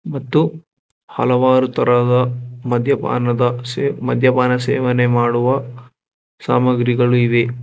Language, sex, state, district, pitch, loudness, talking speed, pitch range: Kannada, male, Karnataka, Bangalore, 125 Hz, -16 LUFS, 70 wpm, 120-130 Hz